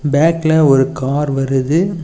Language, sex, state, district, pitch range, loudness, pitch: Tamil, male, Tamil Nadu, Kanyakumari, 135-160 Hz, -14 LUFS, 145 Hz